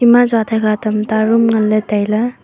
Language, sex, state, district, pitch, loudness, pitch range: Wancho, female, Arunachal Pradesh, Longding, 220 Hz, -14 LUFS, 215-230 Hz